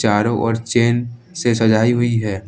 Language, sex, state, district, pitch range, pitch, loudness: Hindi, male, Jharkhand, Ranchi, 110-120 Hz, 115 Hz, -17 LUFS